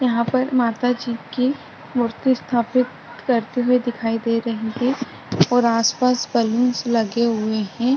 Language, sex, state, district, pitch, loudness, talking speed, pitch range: Hindi, female, Maharashtra, Chandrapur, 240 Hz, -20 LUFS, 145 wpm, 230-250 Hz